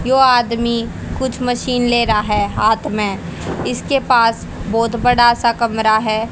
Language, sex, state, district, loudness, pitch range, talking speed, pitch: Hindi, female, Haryana, Jhajjar, -16 LUFS, 220-245 Hz, 150 wpm, 235 Hz